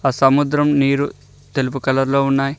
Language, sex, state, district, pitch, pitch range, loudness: Telugu, male, Telangana, Mahabubabad, 135 Hz, 135-140 Hz, -17 LUFS